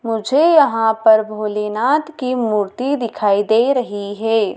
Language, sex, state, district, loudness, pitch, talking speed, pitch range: Hindi, female, Madhya Pradesh, Dhar, -16 LUFS, 225 Hz, 130 wpm, 210-255 Hz